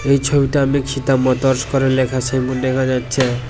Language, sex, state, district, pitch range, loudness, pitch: Bengali, male, Tripura, West Tripura, 130-135 Hz, -17 LUFS, 130 Hz